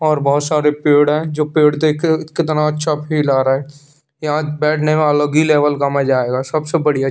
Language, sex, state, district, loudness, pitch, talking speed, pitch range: Hindi, male, Chandigarh, Chandigarh, -16 LUFS, 150 Hz, 185 wpm, 145-155 Hz